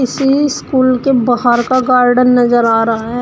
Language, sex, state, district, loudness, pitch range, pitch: Hindi, female, Uttar Pradesh, Shamli, -12 LUFS, 240-255 Hz, 250 Hz